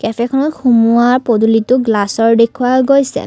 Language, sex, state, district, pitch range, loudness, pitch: Assamese, female, Assam, Kamrup Metropolitan, 225-260 Hz, -12 LUFS, 235 Hz